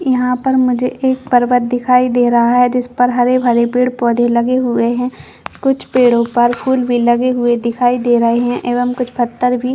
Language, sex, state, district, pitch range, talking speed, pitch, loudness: Hindi, female, Chhattisgarh, Bastar, 240-250 Hz, 220 wpm, 245 Hz, -14 LUFS